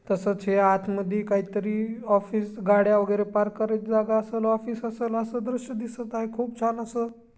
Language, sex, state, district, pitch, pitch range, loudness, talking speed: Marathi, female, Maharashtra, Chandrapur, 220 Hz, 205-230 Hz, -26 LUFS, 180 wpm